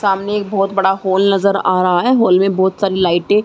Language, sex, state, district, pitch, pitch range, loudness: Hindi, female, Uttar Pradesh, Muzaffarnagar, 195 Hz, 190-200 Hz, -14 LUFS